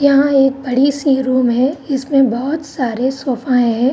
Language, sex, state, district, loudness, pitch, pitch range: Hindi, male, Uttar Pradesh, Muzaffarnagar, -15 LUFS, 265 Hz, 255-280 Hz